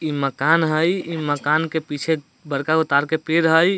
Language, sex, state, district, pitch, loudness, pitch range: Bajjika, male, Bihar, Vaishali, 160 Hz, -20 LUFS, 145-165 Hz